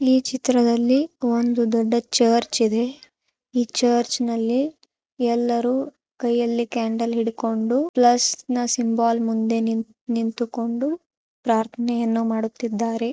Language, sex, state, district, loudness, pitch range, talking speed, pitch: Kannada, female, Karnataka, Chamarajanagar, -22 LUFS, 230-250 Hz, 80 wpm, 235 Hz